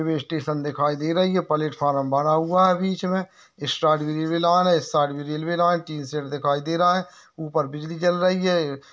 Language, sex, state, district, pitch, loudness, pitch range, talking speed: Hindi, male, Uttar Pradesh, Jyotiba Phule Nagar, 155 Hz, -23 LUFS, 150-175 Hz, 235 wpm